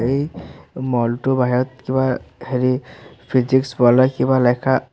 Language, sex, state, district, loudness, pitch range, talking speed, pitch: Assamese, male, Assam, Sonitpur, -18 LUFS, 125-130 Hz, 120 wpm, 130 Hz